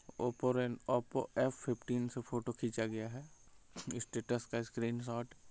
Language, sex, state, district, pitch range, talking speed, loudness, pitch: Hindi, male, Chhattisgarh, Sarguja, 115-125 Hz, 140 wpm, -39 LUFS, 120 Hz